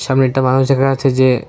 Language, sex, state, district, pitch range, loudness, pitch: Bengali, male, Tripura, West Tripura, 130-135 Hz, -14 LUFS, 130 Hz